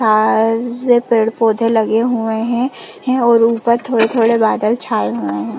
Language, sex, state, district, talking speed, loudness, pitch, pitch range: Hindi, female, Chhattisgarh, Balrampur, 140 wpm, -15 LUFS, 230 Hz, 220-240 Hz